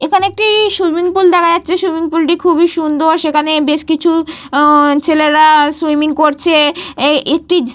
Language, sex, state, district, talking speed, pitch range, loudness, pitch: Bengali, female, Jharkhand, Jamtara, 165 wpm, 300-345 Hz, -11 LUFS, 320 Hz